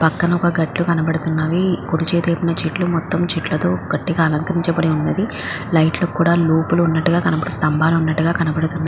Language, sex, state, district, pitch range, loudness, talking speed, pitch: Telugu, female, Andhra Pradesh, Visakhapatnam, 160-170 Hz, -18 LUFS, 155 wpm, 165 Hz